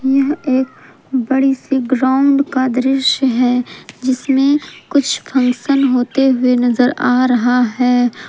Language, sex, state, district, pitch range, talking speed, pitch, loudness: Hindi, female, Jharkhand, Palamu, 250-270 Hz, 125 wpm, 260 Hz, -15 LUFS